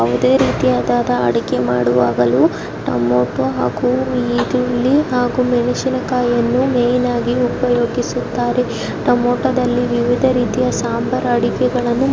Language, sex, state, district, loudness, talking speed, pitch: Kannada, female, Karnataka, Chamarajanagar, -16 LUFS, 90 wpm, 240 Hz